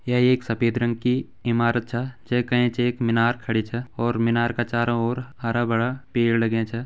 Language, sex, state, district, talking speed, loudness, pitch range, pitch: Hindi, male, Uttarakhand, Tehri Garhwal, 210 wpm, -23 LUFS, 115-125 Hz, 120 Hz